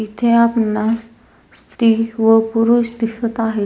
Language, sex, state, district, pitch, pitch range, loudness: Marathi, female, Maharashtra, Solapur, 225 Hz, 225-230 Hz, -16 LUFS